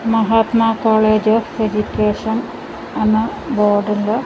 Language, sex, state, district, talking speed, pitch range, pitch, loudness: Malayalam, female, Kerala, Kasaragod, 100 wpm, 210-225 Hz, 220 Hz, -16 LUFS